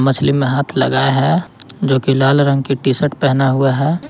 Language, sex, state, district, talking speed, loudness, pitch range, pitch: Hindi, male, Jharkhand, Ranchi, 220 wpm, -15 LUFS, 135-140 Hz, 135 Hz